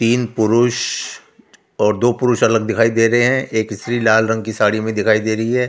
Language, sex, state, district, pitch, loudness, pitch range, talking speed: Hindi, male, Delhi, New Delhi, 115 Hz, -16 LUFS, 110-120 Hz, 220 wpm